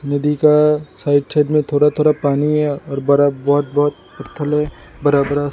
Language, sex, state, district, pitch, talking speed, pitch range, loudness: Hindi, male, Assam, Sonitpur, 145 Hz, 195 wpm, 145-150 Hz, -16 LUFS